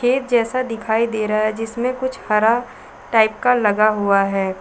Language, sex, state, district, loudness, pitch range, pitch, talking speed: Hindi, female, Chhattisgarh, Balrampur, -18 LUFS, 215-245 Hz, 225 Hz, 180 wpm